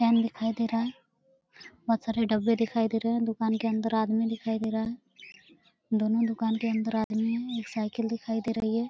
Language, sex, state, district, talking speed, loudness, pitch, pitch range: Hindi, female, Bihar, Araria, 210 wpm, -29 LUFS, 225 Hz, 220-230 Hz